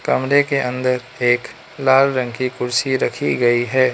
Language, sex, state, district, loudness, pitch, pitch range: Hindi, male, Manipur, Imphal West, -18 LUFS, 130 Hz, 125-135 Hz